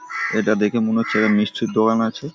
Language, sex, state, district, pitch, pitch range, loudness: Bengali, male, West Bengal, Paschim Medinipur, 110 Hz, 110-115 Hz, -19 LUFS